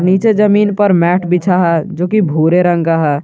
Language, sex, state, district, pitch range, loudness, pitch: Hindi, male, Jharkhand, Garhwa, 170-200 Hz, -12 LUFS, 180 Hz